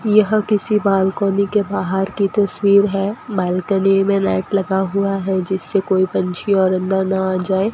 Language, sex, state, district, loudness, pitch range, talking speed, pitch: Hindi, female, Rajasthan, Bikaner, -17 LUFS, 190-200 Hz, 170 wpm, 195 Hz